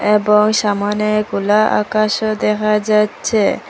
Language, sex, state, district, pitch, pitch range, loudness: Bengali, female, Assam, Hailakandi, 210 Hz, 210-215 Hz, -15 LUFS